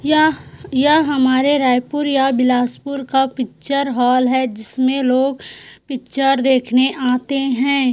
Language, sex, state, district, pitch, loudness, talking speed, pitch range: Hindi, female, Chhattisgarh, Korba, 265 Hz, -16 LUFS, 115 wpm, 255-275 Hz